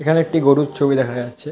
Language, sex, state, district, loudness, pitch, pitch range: Bengali, male, West Bengal, North 24 Parganas, -17 LUFS, 140 Hz, 130-155 Hz